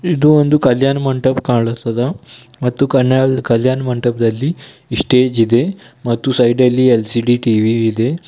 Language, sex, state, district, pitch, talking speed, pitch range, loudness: Kannada, male, Karnataka, Bidar, 125 Hz, 125 wpm, 120-135 Hz, -14 LUFS